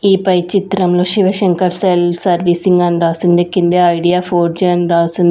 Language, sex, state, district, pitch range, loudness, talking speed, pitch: Telugu, female, Andhra Pradesh, Sri Satya Sai, 175-185 Hz, -13 LUFS, 160 wpm, 175 Hz